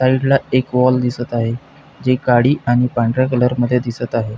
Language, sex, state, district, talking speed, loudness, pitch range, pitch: Marathi, male, Maharashtra, Pune, 165 wpm, -16 LUFS, 120-130 Hz, 125 Hz